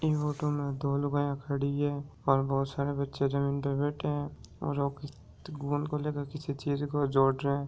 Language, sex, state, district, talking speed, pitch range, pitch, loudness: Marwari, male, Rajasthan, Nagaur, 205 wpm, 140-145 Hz, 140 Hz, -31 LUFS